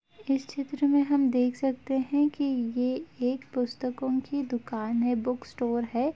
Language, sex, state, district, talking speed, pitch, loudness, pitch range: Hindi, female, Uttar Pradesh, Etah, 165 wpm, 255 Hz, -28 LUFS, 245-275 Hz